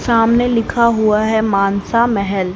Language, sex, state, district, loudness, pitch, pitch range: Hindi, female, Haryana, Rohtak, -15 LUFS, 220 Hz, 200-235 Hz